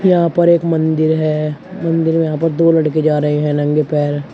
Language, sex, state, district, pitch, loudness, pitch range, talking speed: Hindi, male, Uttar Pradesh, Shamli, 155 Hz, -15 LUFS, 150-165 Hz, 220 wpm